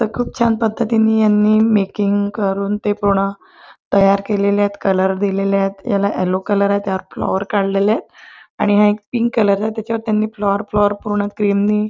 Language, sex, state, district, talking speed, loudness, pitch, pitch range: Marathi, female, Maharashtra, Chandrapur, 180 wpm, -17 LUFS, 205 Hz, 200-215 Hz